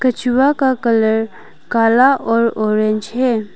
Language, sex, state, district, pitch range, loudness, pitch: Hindi, female, Arunachal Pradesh, Papum Pare, 220-255 Hz, -15 LUFS, 230 Hz